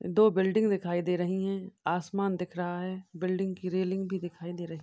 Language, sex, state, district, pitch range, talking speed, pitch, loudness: Hindi, female, Uttar Pradesh, Ghazipur, 175-190 Hz, 235 wpm, 185 Hz, -31 LUFS